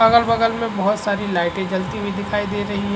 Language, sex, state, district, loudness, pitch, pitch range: Hindi, male, Uttar Pradesh, Varanasi, -20 LUFS, 205 Hz, 200-220 Hz